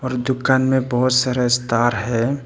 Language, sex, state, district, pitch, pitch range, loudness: Hindi, male, Arunachal Pradesh, Papum Pare, 125 Hz, 120-130 Hz, -18 LUFS